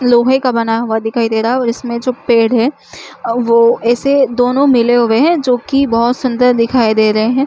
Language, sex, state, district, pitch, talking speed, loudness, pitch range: Chhattisgarhi, female, Chhattisgarh, Jashpur, 240 Hz, 215 wpm, -12 LUFS, 230-255 Hz